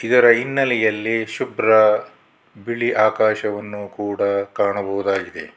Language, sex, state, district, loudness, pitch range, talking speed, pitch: Kannada, male, Karnataka, Bangalore, -19 LUFS, 100-115 Hz, 75 wpm, 110 Hz